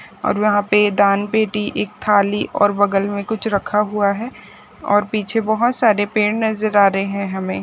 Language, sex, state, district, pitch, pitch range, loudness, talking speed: Hindi, female, Rajasthan, Churu, 210 Hz, 200-215 Hz, -17 LUFS, 180 wpm